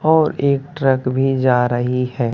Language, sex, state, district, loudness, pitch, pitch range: Hindi, male, Bihar, Katihar, -17 LUFS, 130 Hz, 125-140 Hz